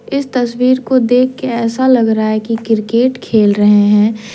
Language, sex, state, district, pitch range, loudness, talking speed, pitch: Hindi, female, Jharkhand, Deoghar, 215-255 Hz, -12 LUFS, 180 wpm, 230 Hz